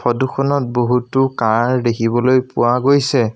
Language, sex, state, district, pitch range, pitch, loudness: Assamese, male, Assam, Sonitpur, 120-130 Hz, 125 Hz, -16 LUFS